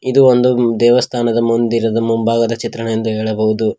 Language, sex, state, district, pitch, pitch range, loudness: Kannada, male, Karnataka, Koppal, 115 Hz, 115-120 Hz, -14 LUFS